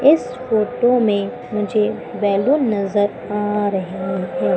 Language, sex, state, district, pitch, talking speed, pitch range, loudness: Hindi, female, Madhya Pradesh, Umaria, 210 Hz, 120 wpm, 200-245 Hz, -19 LUFS